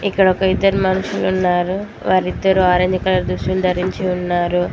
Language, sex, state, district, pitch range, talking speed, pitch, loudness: Telugu, female, Telangana, Mahabubabad, 180-190 Hz, 140 wpm, 185 Hz, -17 LUFS